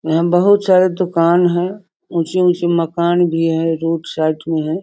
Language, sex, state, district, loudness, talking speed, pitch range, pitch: Hindi, female, Bihar, Sitamarhi, -15 LUFS, 60 wpm, 165-180 Hz, 170 Hz